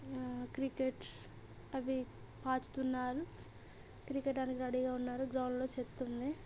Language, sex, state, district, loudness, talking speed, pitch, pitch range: Telugu, female, Telangana, Karimnagar, -40 LUFS, 130 wpm, 255 Hz, 250-265 Hz